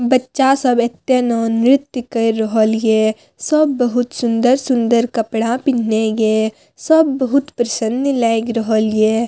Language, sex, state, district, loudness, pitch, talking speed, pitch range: Maithili, female, Bihar, Madhepura, -16 LUFS, 235 Hz, 130 wpm, 225-260 Hz